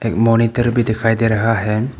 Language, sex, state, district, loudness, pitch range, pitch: Hindi, male, Arunachal Pradesh, Papum Pare, -16 LUFS, 110-115 Hz, 115 Hz